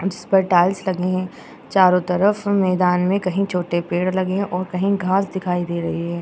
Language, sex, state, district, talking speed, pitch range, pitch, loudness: Hindi, female, Uttar Pradesh, Jyotiba Phule Nagar, 195 wpm, 180-195 Hz, 185 Hz, -19 LUFS